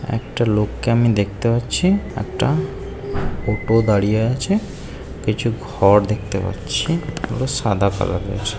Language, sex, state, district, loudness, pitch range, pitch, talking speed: Bengali, male, West Bengal, Jhargram, -19 LUFS, 100-120 Hz, 105 Hz, 125 wpm